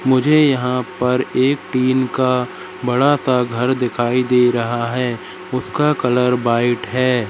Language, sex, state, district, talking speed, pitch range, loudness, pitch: Hindi, male, Madhya Pradesh, Katni, 140 wpm, 125-130 Hz, -17 LUFS, 125 Hz